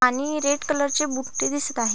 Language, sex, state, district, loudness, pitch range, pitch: Marathi, female, Maharashtra, Pune, -23 LUFS, 260-290 Hz, 285 Hz